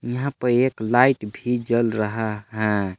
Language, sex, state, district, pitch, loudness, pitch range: Hindi, male, Jharkhand, Palamu, 115 Hz, -22 LUFS, 105-125 Hz